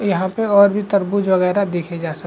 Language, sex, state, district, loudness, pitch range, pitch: Hindi, male, Chhattisgarh, Bastar, -17 LUFS, 180-200 Hz, 195 Hz